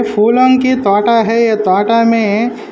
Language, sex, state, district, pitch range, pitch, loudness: Hindi, male, Maharashtra, Solapur, 215-235 Hz, 230 Hz, -11 LUFS